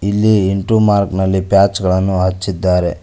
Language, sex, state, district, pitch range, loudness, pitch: Kannada, male, Karnataka, Koppal, 95-100 Hz, -14 LUFS, 95 Hz